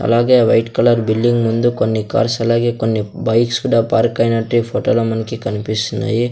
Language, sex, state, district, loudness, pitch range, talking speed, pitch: Telugu, male, Andhra Pradesh, Sri Satya Sai, -16 LUFS, 110-120 Hz, 180 wpm, 115 Hz